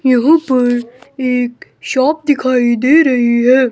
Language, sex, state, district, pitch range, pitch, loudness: Hindi, male, Himachal Pradesh, Shimla, 245-275 Hz, 255 Hz, -13 LUFS